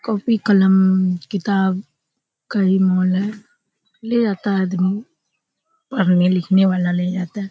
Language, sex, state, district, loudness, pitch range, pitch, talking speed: Hindi, female, Bihar, Kishanganj, -18 LUFS, 185-215 Hz, 195 Hz, 130 wpm